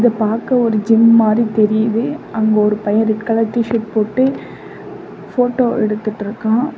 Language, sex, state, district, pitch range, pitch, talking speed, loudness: Tamil, female, Tamil Nadu, Namakkal, 215-235 Hz, 225 Hz, 135 wpm, -15 LUFS